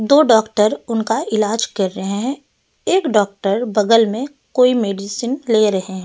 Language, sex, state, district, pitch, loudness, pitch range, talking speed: Hindi, female, Delhi, New Delhi, 220 Hz, -17 LUFS, 205-250 Hz, 160 wpm